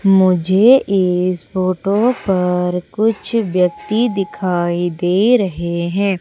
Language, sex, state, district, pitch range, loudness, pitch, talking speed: Hindi, female, Madhya Pradesh, Umaria, 180-205 Hz, -16 LUFS, 185 Hz, 95 wpm